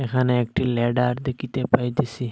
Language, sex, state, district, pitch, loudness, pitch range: Bengali, male, Assam, Hailakandi, 125 Hz, -23 LUFS, 125-130 Hz